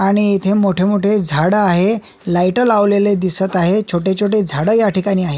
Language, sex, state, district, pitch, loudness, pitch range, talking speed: Marathi, male, Maharashtra, Solapur, 195 Hz, -15 LUFS, 185-205 Hz, 165 wpm